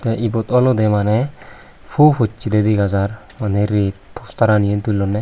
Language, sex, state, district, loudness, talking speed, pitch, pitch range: Chakma, female, Tripura, Unakoti, -17 LUFS, 140 wpm, 105 Hz, 100-115 Hz